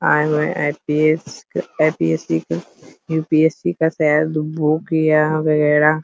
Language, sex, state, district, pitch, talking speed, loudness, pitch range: Hindi, male, Bihar, Muzaffarpur, 155 Hz, 130 wpm, -18 LUFS, 150-155 Hz